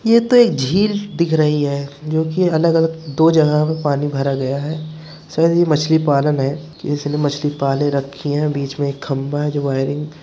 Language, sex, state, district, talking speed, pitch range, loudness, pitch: Hindi, male, Uttar Pradesh, Muzaffarnagar, 195 wpm, 140-160 Hz, -17 LUFS, 150 Hz